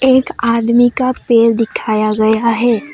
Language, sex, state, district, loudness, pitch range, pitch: Hindi, female, Assam, Kamrup Metropolitan, -13 LUFS, 225-255 Hz, 230 Hz